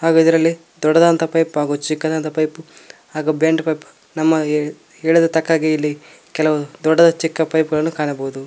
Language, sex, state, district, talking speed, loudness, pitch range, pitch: Kannada, male, Karnataka, Koppal, 140 wpm, -17 LUFS, 155-165 Hz, 160 Hz